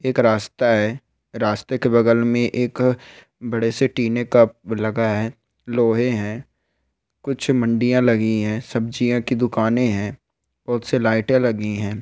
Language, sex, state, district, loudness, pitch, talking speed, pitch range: Hindi, male, Rajasthan, Churu, -20 LUFS, 115 Hz, 145 wpm, 110-125 Hz